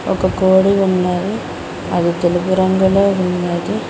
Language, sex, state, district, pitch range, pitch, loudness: Telugu, female, Telangana, Mahabubabad, 175-190 Hz, 180 Hz, -15 LUFS